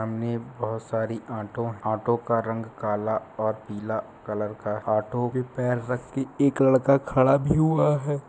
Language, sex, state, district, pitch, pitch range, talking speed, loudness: Hindi, male, Chhattisgarh, Bilaspur, 115 Hz, 110-130 Hz, 165 wpm, -26 LUFS